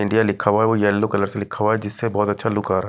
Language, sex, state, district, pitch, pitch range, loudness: Hindi, male, Himachal Pradesh, Shimla, 105 Hz, 100-110 Hz, -20 LUFS